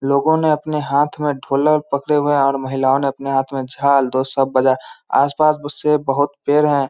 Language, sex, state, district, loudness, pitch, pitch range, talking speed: Hindi, male, Bihar, Samastipur, -17 LUFS, 140 Hz, 135-150 Hz, 210 wpm